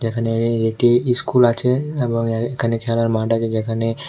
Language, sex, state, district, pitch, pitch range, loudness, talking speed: Bengali, male, Tripura, West Tripura, 115 Hz, 115-120 Hz, -19 LUFS, 175 wpm